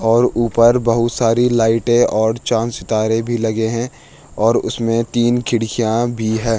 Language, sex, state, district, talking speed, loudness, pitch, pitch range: Hindi, male, Uttarakhand, Tehri Garhwal, 145 wpm, -16 LUFS, 115 Hz, 115-120 Hz